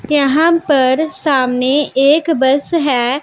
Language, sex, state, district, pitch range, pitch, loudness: Hindi, female, Punjab, Pathankot, 265-310 Hz, 285 Hz, -13 LUFS